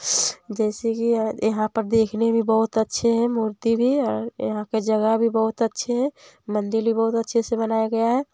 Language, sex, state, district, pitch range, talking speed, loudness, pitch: Hindi, female, Bihar, Lakhisarai, 220-230 Hz, 210 wpm, -22 LUFS, 225 Hz